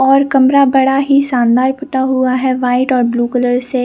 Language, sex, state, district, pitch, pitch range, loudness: Hindi, female, Punjab, Fazilka, 260 Hz, 250-270 Hz, -12 LUFS